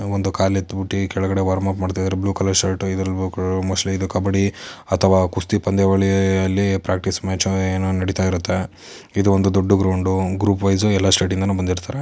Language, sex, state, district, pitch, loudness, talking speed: Kannada, male, Karnataka, Dakshina Kannada, 95 Hz, -19 LUFS, 180 wpm